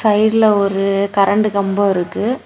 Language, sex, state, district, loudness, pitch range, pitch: Tamil, female, Tamil Nadu, Kanyakumari, -15 LUFS, 195-215 Hz, 200 Hz